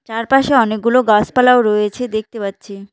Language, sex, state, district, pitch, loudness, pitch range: Bengali, female, West Bengal, Cooch Behar, 225 Hz, -14 LUFS, 210-250 Hz